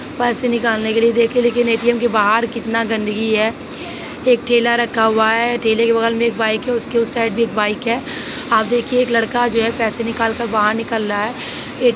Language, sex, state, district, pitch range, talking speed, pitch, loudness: Hindi, female, Uttar Pradesh, Jalaun, 225-240 Hz, 240 wpm, 230 Hz, -17 LUFS